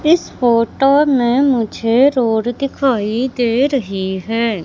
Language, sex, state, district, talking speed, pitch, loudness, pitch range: Hindi, female, Madhya Pradesh, Katni, 115 wpm, 240 Hz, -15 LUFS, 225-270 Hz